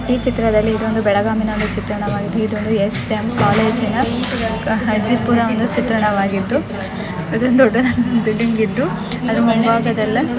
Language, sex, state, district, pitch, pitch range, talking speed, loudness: Kannada, female, Karnataka, Belgaum, 225 Hz, 215-235 Hz, 115 wpm, -17 LUFS